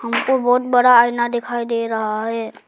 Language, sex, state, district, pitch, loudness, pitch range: Hindi, female, Arunachal Pradesh, Lower Dibang Valley, 235 Hz, -17 LUFS, 230-245 Hz